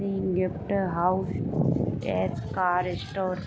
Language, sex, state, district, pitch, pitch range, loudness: Hindi, female, Jharkhand, Sahebganj, 180 Hz, 145-185 Hz, -27 LUFS